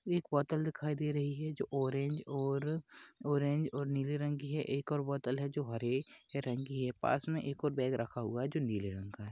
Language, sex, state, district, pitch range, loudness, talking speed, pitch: Hindi, male, Maharashtra, Pune, 130-150 Hz, -37 LUFS, 240 wpm, 140 Hz